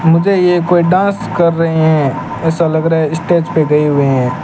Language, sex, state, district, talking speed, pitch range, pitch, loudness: Hindi, male, Rajasthan, Bikaner, 215 wpm, 155-175 Hz, 165 Hz, -12 LUFS